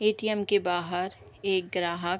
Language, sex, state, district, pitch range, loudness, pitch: Hindi, female, Bihar, East Champaran, 175-205 Hz, -29 LUFS, 185 Hz